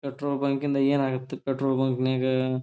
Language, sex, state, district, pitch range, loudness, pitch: Kannada, male, Karnataka, Belgaum, 130-140 Hz, -26 LUFS, 135 Hz